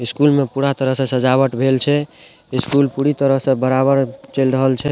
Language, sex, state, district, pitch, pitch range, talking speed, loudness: Maithili, male, Bihar, Madhepura, 135 Hz, 130-140 Hz, 195 wpm, -17 LUFS